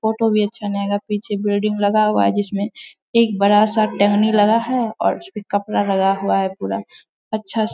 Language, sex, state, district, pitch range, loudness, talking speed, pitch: Hindi, female, Bihar, Araria, 205-220 Hz, -18 LUFS, 210 wpm, 210 Hz